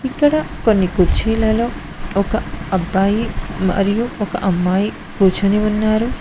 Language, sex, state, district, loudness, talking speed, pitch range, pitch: Telugu, female, Telangana, Mahabubabad, -17 LUFS, 95 wpm, 190-225 Hz, 210 Hz